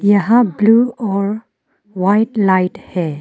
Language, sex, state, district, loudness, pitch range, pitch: Hindi, female, Arunachal Pradesh, Papum Pare, -15 LUFS, 190-220 Hz, 205 Hz